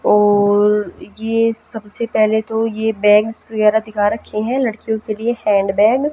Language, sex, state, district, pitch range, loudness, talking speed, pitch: Hindi, female, Haryana, Jhajjar, 210-225 Hz, -16 LUFS, 165 wpm, 220 Hz